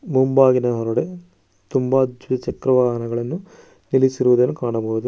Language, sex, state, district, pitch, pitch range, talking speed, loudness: Kannada, male, Karnataka, Bangalore, 130 Hz, 120-135 Hz, 85 wpm, -19 LUFS